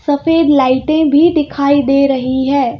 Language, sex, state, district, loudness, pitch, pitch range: Hindi, female, Madhya Pradesh, Bhopal, -12 LUFS, 285 Hz, 270-305 Hz